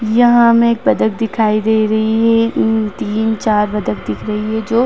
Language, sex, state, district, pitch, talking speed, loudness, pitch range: Hindi, female, Uttar Pradesh, Jalaun, 220 Hz, 210 wpm, -14 LUFS, 215-230 Hz